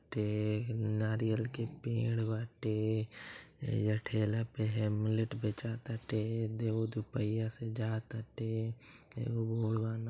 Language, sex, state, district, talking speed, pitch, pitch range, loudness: Bhojpuri, male, Uttar Pradesh, Deoria, 120 wpm, 110 Hz, 110-115 Hz, -36 LUFS